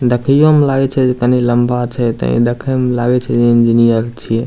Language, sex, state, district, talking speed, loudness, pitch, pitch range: Maithili, male, Bihar, Samastipur, 215 wpm, -13 LUFS, 120 Hz, 120-125 Hz